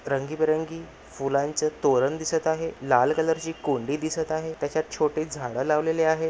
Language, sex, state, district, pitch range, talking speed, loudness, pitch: Marathi, male, Maharashtra, Nagpur, 145-160 Hz, 150 wpm, -26 LUFS, 155 Hz